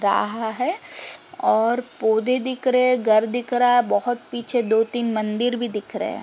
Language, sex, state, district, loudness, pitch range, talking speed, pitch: Hindi, female, Uttar Pradesh, Varanasi, -21 LUFS, 220-245 Hz, 165 wpm, 240 Hz